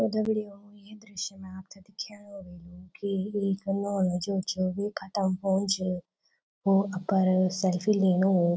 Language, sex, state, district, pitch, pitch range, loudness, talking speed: Garhwali, female, Uttarakhand, Tehri Garhwal, 195 Hz, 185-200 Hz, -28 LUFS, 145 wpm